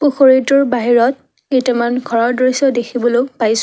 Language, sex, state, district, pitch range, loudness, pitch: Assamese, female, Assam, Kamrup Metropolitan, 240-265 Hz, -14 LUFS, 250 Hz